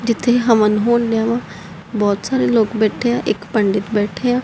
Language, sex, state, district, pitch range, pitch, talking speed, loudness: Punjabi, female, Punjab, Kapurthala, 205-235 Hz, 220 Hz, 175 wpm, -17 LUFS